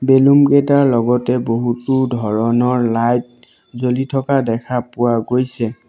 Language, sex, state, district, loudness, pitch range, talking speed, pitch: Assamese, male, Assam, Sonitpur, -16 LUFS, 120-130 Hz, 110 wpm, 125 Hz